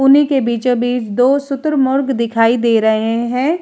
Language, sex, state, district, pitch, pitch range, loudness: Hindi, female, Uttar Pradesh, Jalaun, 250 Hz, 235-275 Hz, -15 LUFS